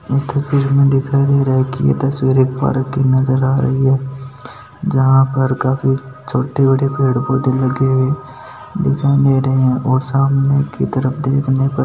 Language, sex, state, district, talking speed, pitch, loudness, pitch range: Marwari, male, Rajasthan, Nagaur, 180 wpm, 135 Hz, -15 LUFS, 130-140 Hz